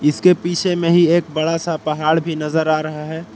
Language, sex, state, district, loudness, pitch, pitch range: Hindi, male, Jharkhand, Palamu, -17 LUFS, 160 Hz, 155-170 Hz